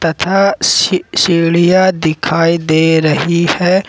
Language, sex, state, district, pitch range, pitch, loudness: Hindi, male, Jharkhand, Ranchi, 160-185 Hz, 170 Hz, -12 LUFS